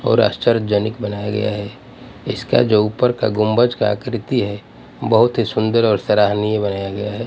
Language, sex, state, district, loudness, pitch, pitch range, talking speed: Hindi, male, Punjab, Pathankot, -18 LUFS, 105 Hz, 105-115 Hz, 175 wpm